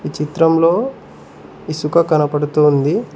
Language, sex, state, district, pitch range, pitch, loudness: Telugu, male, Telangana, Mahabubabad, 150-165 Hz, 150 Hz, -15 LUFS